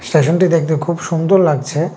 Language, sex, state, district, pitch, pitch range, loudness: Bengali, male, Tripura, West Tripura, 165 Hz, 155-170 Hz, -15 LUFS